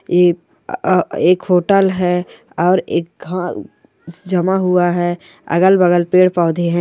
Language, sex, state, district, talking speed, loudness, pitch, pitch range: Hindi, female, Rajasthan, Churu, 115 wpm, -15 LUFS, 180 Hz, 175-185 Hz